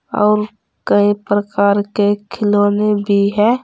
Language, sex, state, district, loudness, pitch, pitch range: Hindi, female, Uttar Pradesh, Saharanpur, -15 LUFS, 205 Hz, 205-210 Hz